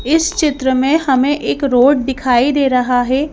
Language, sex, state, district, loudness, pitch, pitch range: Hindi, female, Madhya Pradesh, Bhopal, -14 LUFS, 265 Hz, 255-290 Hz